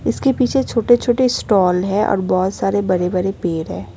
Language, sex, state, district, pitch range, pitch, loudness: Hindi, female, West Bengal, Alipurduar, 185-240 Hz, 195 Hz, -17 LUFS